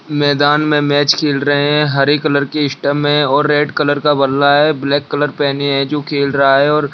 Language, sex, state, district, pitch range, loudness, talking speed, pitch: Hindi, male, Bihar, Jahanabad, 140-150 Hz, -13 LUFS, 235 wpm, 145 Hz